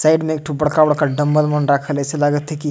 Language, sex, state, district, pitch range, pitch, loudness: Sadri, male, Chhattisgarh, Jashpur, 145-155 Hz, 150 Hz, -17 LUFS